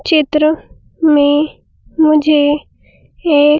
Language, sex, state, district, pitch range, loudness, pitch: Hindi, female, Madhya Pradesh, Bhopal, 295-310 Hz, -13 LUFS, 305 Hz